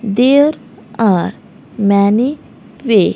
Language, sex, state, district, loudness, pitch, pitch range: Hindi, female, Haryana, Rohtak, -13 LUFS, 225 Hz, 205-255 Hz